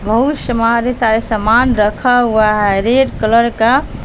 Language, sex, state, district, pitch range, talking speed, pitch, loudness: Hindi, female, Bihar, West Champaran, 220-245 Hz, 150 wpm, 230 Hz, -13 LUFS